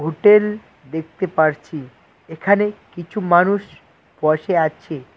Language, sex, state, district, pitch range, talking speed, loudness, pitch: Bengali, male, West Bengal, Cooch Behar, 155-200 Hz, 95 wpm, -18 LUFS, 160 Hz